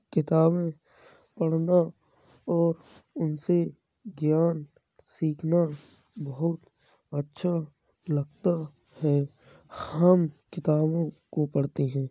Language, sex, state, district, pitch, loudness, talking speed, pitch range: Hindi, male, Uttar Pradesh, Jalaun, 160 Hz, -27 LUFS, 70 wpm, 145-170 Hz